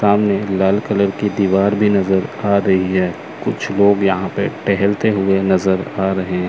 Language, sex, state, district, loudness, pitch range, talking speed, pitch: Hindi, male, Chandigarh, Chandigarh, -16 LUFS, 95-100 Hz, 175 wpm, 100 Hz